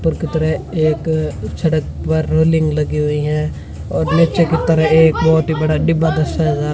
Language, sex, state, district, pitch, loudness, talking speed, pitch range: Hindi, female, Rajasthan, Bikaner, 155 Hz, -16 LUFS, 195 wpm, 150-160 Hz